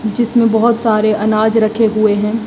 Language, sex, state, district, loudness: Hindi, male, Haryana, Jhajjar, -13 LUFS